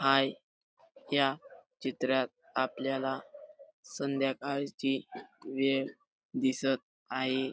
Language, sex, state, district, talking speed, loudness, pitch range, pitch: Marathi, male, Maharashtra, Dhule, 65 wpm, -33 LUFS, 130-140 Hz, 135 Hz